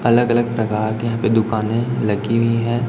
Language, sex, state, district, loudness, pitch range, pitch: Hindi, male, Chhattisgarh, Raipur, -18 LUFS, 110-120 Hz, 115 Hz